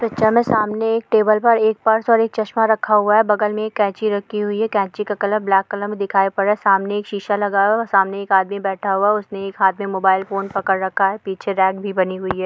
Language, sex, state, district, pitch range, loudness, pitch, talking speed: Hindi, female, Jharkhand, Sahebganj, 195-215 Hz, -18 LUFS, 205 Hz, 280 wpm